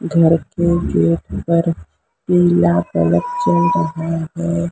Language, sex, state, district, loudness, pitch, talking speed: Hindi, female, Maharashtra, Mumbai Suburban, -16 LUFS, 165 Hz, 100 wpm